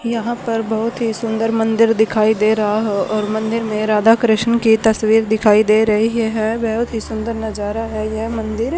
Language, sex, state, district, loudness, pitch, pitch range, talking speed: Hindi, female, Haryana, Charkhi Dadri, -17 LUFS, 220 Hz, 215-225 Hz, 190 wpm